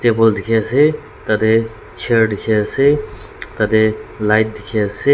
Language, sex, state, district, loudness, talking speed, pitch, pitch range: Nagamese, male, Nagaland, Dimapur, -16 LUFS, 130 wpm, 110 Hz, 110-115 Hz